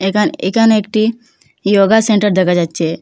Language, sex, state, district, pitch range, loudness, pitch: Bengali, female, Assam, Hailakandi, 185-220 Hz, -13 LUFS, 205 Hz